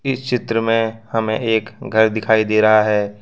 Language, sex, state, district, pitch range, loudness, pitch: Hindi, male, Jharkhand, Ranchi, 110-115 Hz, -17 LUFS, 110 Hz